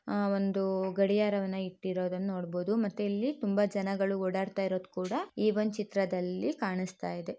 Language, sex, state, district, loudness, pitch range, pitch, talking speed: Kannada, female, Karnataka, Dakshina Kannada, -32 LUFS, 185-205 Hz, 195 Hz, 140 wpm